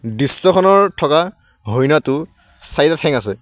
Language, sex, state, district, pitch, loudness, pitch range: Assamese, male, Assam, Sonitpur, 150 Hz, -15 LUFS, 130-185 Hz